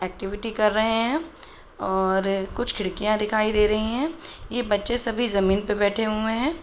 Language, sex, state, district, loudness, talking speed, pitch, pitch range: Hindi, female, Uttar Pradesh, Budaun, -24 LUFS, 170 wpm, 215 Hz, 200-240 Hz